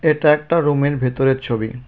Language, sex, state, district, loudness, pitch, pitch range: Bengali, male, West Bengal, Cooch Behar, -17 LUFS, 140 Hz, 125-150 Hz